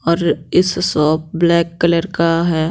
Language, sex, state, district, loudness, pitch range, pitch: Hindi, female, Bihar, Patna, -16 LUFS, 165-170 Hz, 170 Hz